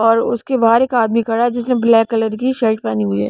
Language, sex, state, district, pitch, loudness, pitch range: Hindi, female, Punjab, Pathankot, 230 Hz, -15 LUFS, 225-240 Hz